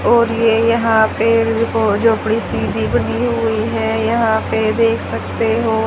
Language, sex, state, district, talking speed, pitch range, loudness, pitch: Hindi, female, Haryana, Charkhi Dadri, 165 wpm, 220-230 Hz, -16 LUFS, 225 Hz